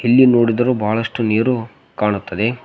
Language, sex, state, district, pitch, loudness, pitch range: Kannada, male, Karnataka, Koppal, 115 Hz, -17 LUFS, 110-120 Hz